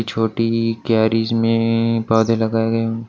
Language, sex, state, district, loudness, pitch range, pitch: Hindi, male, Maharashtra, Washim, -18 LUFS, 110-115 Hz, 115 Hz